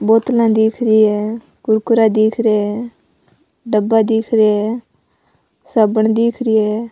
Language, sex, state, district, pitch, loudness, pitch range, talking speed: Rajasthani, female, Rajasthan, Nagaur, 220 Hz, -15 LUFS, 215-230 Hz, 140 wpm